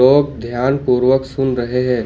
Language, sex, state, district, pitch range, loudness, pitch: Hindi, male, Jharkhand, Ranchi, 125-135 Hz, -16 LUFS, 130 Hz